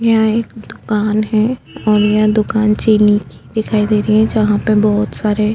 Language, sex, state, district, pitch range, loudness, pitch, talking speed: Hindi, female, Maharashtra, Chandrapur, 210-220 Hz, -14 LUFS, 215 Hz, 195 wpm